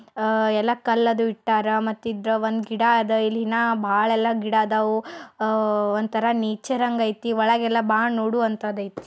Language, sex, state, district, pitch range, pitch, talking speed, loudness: Kannada, male, Karnataka, Bijapur, 220-230 Hz, 220 Hz, 150 wpm, -22 LUFS